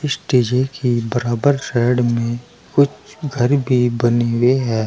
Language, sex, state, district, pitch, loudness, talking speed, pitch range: Hindi, male, Uttar Pradesh, Saharanpur, 120 Hz, -17 LUFS, 135 wpm, 120-135 Hz